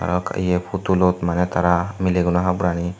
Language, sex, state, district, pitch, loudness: Chakma, male, Tripura, Unakoti, 90 Hz, -20 LUFS